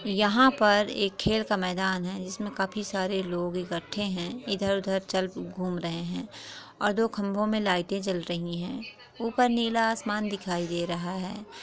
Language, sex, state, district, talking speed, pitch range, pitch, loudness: Hindi, female, Bihar, Lakhisarai, 170 wpm, 180-210 Hz, 195 Hz, -28 LUFS